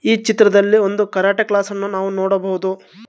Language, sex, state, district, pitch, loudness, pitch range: Kannada, male, Karnataka, Bangalore, 200 Hz, -16 LUFS, 190-215 Hz